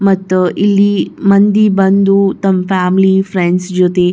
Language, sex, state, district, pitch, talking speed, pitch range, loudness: Kannada, female, Karnataka, Bijapur, 190 Hz, 130 wpm, 185-200 Hz, -11 LUFS